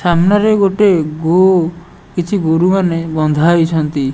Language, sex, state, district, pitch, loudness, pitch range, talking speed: Odia, male, Odisha, Nuapada, 170 Hz, -13 LUFS, 160-190 Hz, 85 wpm